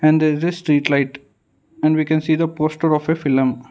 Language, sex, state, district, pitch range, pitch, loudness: English, male, Karnataka, Bangalore, 140-155 Hz, 155 Hz, -18 LUFS